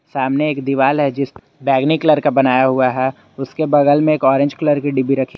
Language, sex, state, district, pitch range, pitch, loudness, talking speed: Hindi, male, Jharkhand, Garhwa, 130-145 Hz, 140 Hz, -16 LUFS, 225 wpm